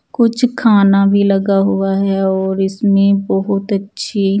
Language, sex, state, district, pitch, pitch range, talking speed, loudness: Hindi, female, Chandigarh, Chandigarh, 195 Hz, 195-200 Hz, 135 wpm, -14 LUFS